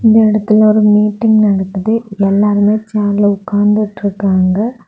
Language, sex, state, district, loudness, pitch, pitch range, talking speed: Tamil, female, Tamil Nadu, Kanyakumari, -12 LUFS, 210 Hz, 200-215 Hz, 100 wpm